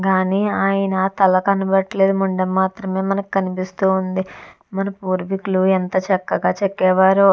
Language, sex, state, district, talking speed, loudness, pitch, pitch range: Telugu, female, Andhra Pradesh, Visakhapatnam, 125 wpm, -18 LUFS, 190 Hz, 185-195 Hz